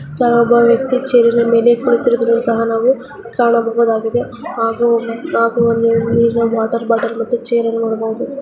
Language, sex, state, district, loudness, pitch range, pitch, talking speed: Kannada, female, Karnataka, Dakshina Kannada, -14 LUFS, 230-240 Hz, 235 Hz, 120 wpm